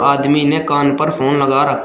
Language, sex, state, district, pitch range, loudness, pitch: Hindi, male, Uttar Pradesh, Shamli, 140-145 Hz, -14 LUFS, 140 Hz